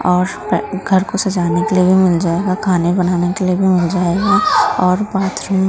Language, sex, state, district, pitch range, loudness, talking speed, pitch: Hindi, female, Delhi, New Delhi, 180-195 Hz, -15 LUFS, 200 wpm, 185 Hz